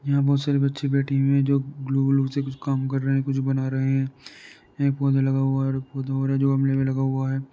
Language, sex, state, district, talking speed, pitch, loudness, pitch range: Hindi, male, Uttar Pradesh, Muzaffarnagar, 270 wpm, 135 Hz, -23 LUFS, 135-140 Hz